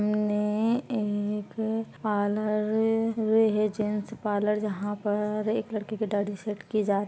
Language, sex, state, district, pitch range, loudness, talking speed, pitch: Hindi, female, Bihar, Purnia, 205-220 Hz, -28 LUFS, 135 wpm, 210 Hz